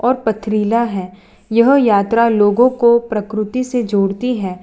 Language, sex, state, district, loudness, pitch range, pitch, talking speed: Hindi, female, Gujarat, Valsad, -15 LUFS, 205-240 Hz, 220 Hz, 140 wpm